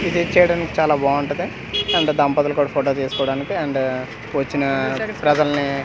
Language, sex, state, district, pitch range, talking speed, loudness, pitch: Telugu, male, Andhra Pradesh, Manyam, 135-150 Hz, 125 wpm, -19 LUFS, 145 Hz